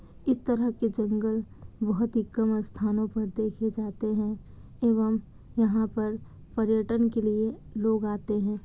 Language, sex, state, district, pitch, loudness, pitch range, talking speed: Hindi, female, Bihar, Kishanganj, 220 Hz, -28 LUFS, 215-225 Hz, 145 wpm